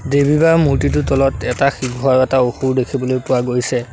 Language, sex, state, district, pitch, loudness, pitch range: Assamese, male, Assam, Sonitpur, 130 Hz, -16 LUFS, 125-135 Hz